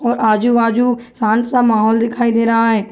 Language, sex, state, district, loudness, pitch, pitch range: Hindi, female, Bihar, Gopalganj, -14 LUFS, 230 Hz, 225-240 Hz